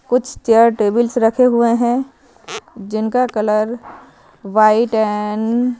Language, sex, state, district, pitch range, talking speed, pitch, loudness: Hindi, female, Himachal Pradesh, Shimla, 215-245 Hz, 115 wpm, 230 Hz, -16 LUFS